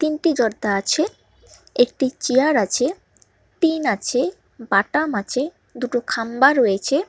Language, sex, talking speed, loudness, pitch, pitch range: Bengali, male, 110 wpm, -20 LUFS, 265 Hz, 235-310 Hz